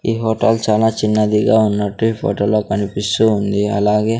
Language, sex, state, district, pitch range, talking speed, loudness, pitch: Telugu, male, Andhra Pradesh, Sri Satya Sai, 105-110 Hz, 140 wpm, -16 LUFS, 105 Hz